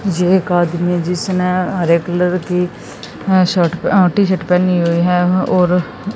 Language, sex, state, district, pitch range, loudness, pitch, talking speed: Hindi, female, Haryana, Jhajjar, 175-185 Hz, -15 LUFS, 180 Hz, 155 wpm